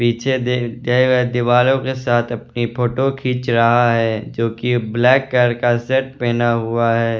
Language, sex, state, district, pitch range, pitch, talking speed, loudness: Hindi, male, Bihar, West Champaran, 115-125 Hz, 120 Hz, 160 wpm, -17 LUFS